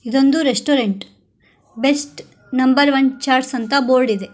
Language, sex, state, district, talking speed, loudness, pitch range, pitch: Kannada, female, Karnataka, Koppal, 125 wpm, -16 LUFS, 250-275 Hz, 265 Hz